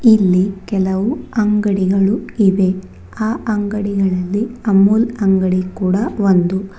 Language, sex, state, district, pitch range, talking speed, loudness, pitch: Kannada, female, Karnataka, Bangalore, 190-215 Hz, 90 wpm, -16 LUFS, 195 Hz